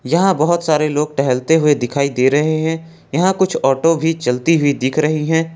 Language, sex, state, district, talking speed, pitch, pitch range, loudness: Hindi, male, Jharkhand, Ranchi, 195 wpm, 155 Hz, 140-165 Hz, -16 LUFS